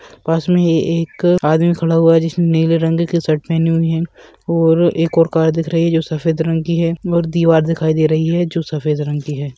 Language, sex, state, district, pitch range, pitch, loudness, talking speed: Hindi, male, Bihar, Darbhanga, 160-170 Hz, 165 Hz, -15 LUFS, 240 wpm